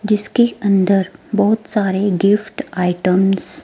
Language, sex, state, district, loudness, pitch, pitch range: Hindi, female, Himachal Pradesh, Shimla, -16 LUFS, 200 Hz, 190-210 Hz